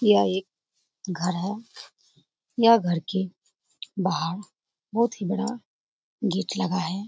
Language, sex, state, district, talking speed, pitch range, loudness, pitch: Hindi, female, Bihar, Lakhisarai, 125 wpm, 185-215 Hz, -26 LUFS, 195 Hz